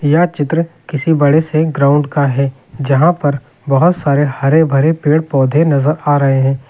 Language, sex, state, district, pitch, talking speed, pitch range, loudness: Hindi, male, Uttar Pradesh, Lucknow, 145 Hz, 180 wpm, 140-160 Hz, -13 LUFS